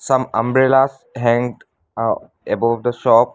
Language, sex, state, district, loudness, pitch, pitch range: English, male, Assam, Sonitpur, -18 LUFS, 120 Hz, 115-130 Hz